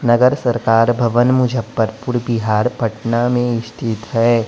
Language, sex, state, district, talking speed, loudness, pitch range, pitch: Hindi, male, Bihar, West Champaran, 120 wpm, -17 LUFS, 115-120 Hz, 120 Hz